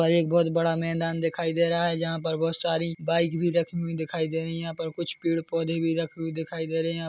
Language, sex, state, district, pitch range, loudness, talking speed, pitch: Hindi, male, Chhattisgarh, Bilaspur, 165-170 Hz, -27 LUFS, 295 wpm, 165 Hz